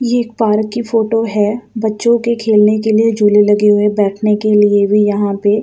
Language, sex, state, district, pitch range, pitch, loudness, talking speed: Hindi, female, Uttar Pradesh, Jalaun, 210-225 Hz, 215 Hz, -13 LUFS, 225 wpm